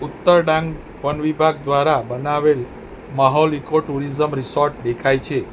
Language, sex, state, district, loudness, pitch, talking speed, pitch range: Gujarati, male, Gujarat, Valsad, -18 LUFS, 145 Hz, 130 wpm, 135-155 Hz